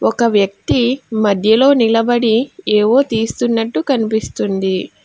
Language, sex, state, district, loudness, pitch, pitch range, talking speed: Telugu, female, Telangana, Hyderabad, -15 LUFS, 225 Hz, 215-240 Hz, 85 wpm